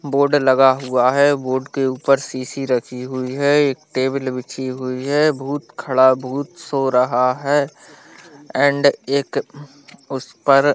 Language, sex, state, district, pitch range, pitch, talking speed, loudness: Hindi, male, Bihar, Lakhisarai, 130-140 Hz, 135 Hz, 150 wpm, -18 LUFS